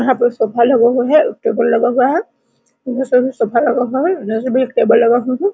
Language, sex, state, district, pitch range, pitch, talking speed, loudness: Hindi, female, Jharkhand, Sahebganj, 235-260 Hz, 250 Hz, 270 wpm, -14 LUFS